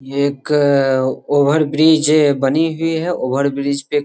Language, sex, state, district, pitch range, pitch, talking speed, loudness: Hindi, male, Bihar, Saharsa, 140-155 Hz, 145 Hz, 165 wpm, -15 LUFS